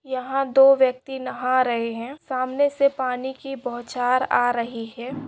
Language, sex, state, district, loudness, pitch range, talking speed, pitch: Hindi, female, Bihar, Saran, -22 LUFS, 245-270 Hz, 160 wpm, 255 Hz